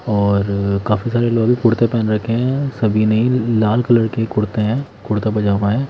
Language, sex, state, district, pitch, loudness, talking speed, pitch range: Hindi, male, Himachal Pradesh, Shimla, 110 Hz, -17 LUFS, 185 wpm, 105-120 Hz